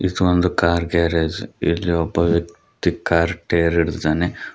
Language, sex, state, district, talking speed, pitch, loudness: Kannada, male, Karnataka, Koppal, 130 wpm, 85 Hz, -19 LUFS